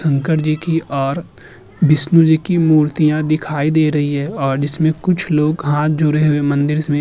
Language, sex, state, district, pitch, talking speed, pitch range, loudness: Hindi, male, Uttar Pradesh, Muzaffarnagar, 155 Hz, 190 wpm, 145-160 Hz, -15 LUFS